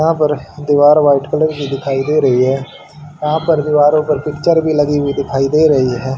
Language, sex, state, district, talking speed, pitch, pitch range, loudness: Hindi, male, Haryana, Charkhi Dadri, 215 wpm, 150 Hz, 140-150 Hz, -14 LUFS